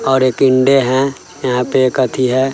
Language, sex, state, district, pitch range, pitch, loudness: Hindi, male, Bihar, Sitamarhi, 130-135 Hz, 130 Hz, -14 LUFS